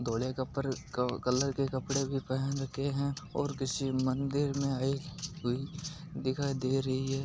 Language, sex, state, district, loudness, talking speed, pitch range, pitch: Hindi, male, Rajasthan, Nagaur, -33 LUFS, 140 wpm, 130-140 Hz, 135 Hz